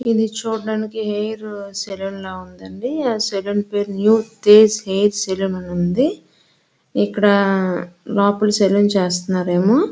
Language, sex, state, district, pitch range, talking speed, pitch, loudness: Telugu, female, Andhra Pradesh, Srikakulam, 190-220 Hz, 115 wpm, 205 Hz, -18 LUFS